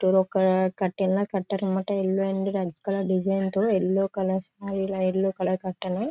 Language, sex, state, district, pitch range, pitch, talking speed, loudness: Telugu, female, Andhra Pradesh, Chittoor, 185-195 Hz, 195 Hz, 175 wpm, -26 LUFS